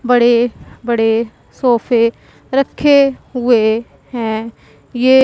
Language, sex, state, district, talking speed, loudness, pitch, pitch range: Hindi, female, Punjab, Pathankot, 80 wpm, -15 LUFS, 240 Hz, 230-255 Hz